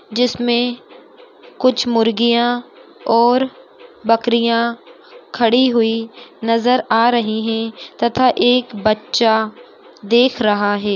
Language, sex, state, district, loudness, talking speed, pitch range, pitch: Hindi, female, Uttar Pradesh, Muzaffarnagar, -16 LUFS, 95 wpm, 225-255 Hz, 235 Hz